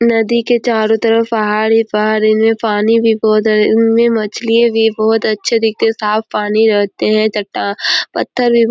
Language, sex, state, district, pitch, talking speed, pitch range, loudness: Hindi, female, Chhattisgarh, Korba, 225 Hz, 165 wpm, 215-230 Hz, -13 LUFS